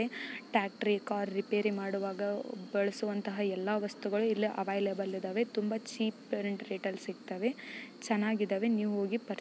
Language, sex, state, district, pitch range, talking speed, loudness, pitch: Kannada, female, Karnataka, Raichur, 200-225 Hz, 120 wpm, -34 LUFS, 210 Hz